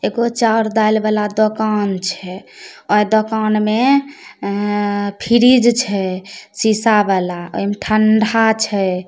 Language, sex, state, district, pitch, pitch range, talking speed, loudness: Maithili, female, Bihar, Samastipur, 215 Hz, 200-220 Hz, 110 wpm, -15 LUFS